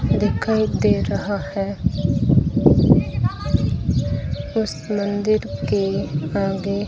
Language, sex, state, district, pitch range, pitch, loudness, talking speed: Hindi, female, Rajasthan, Bikaner, 195-215 Hz, 200 Hz, -20 LUFS, 70 wpm